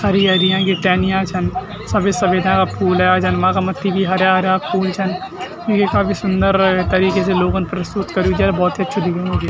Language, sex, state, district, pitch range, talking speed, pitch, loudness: Garhwali, male, Uttarakhand, Tehri Garhwal, 185-195 Hz, 170 wpm, 190 Hz, -16 LUFS